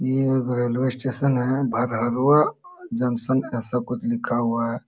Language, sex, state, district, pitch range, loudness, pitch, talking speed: Hindi, male, Jharkhand, Sahebganj, 120-135 Hz, -23 LUFS, 125 Hz, 150 wpm